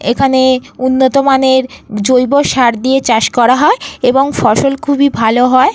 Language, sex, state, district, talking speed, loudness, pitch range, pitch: Bengali, female, Jharkhand, Jamtara, 145 wpm, -11 LUFS, 250-270 Hz, 260 Hz